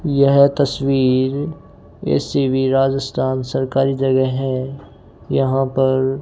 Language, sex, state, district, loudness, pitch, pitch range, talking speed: Hindi, male, Rajasthan, Bikaner, -17 LUFS, 135 Hz, 130-140 Hz, 105 wpm